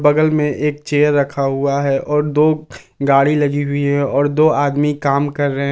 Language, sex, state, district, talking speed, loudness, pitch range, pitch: Hindi, male, Jharkhand, Palamu, 210 wpm, -16 LUFS, 140-150 Hz, 145 Hz